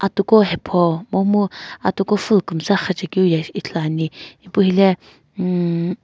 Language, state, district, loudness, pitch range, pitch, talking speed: Sumi, Nagaland, Kohima, -18 LUFS, 170-200 Hz, 185 Hz, 130 wpm